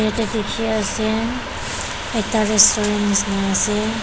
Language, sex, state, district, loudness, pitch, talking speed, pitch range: Nagamese, female, Nagaland, Kohima, -19 LUFS, 215 Hz, 105 wpm, 210-220 Hz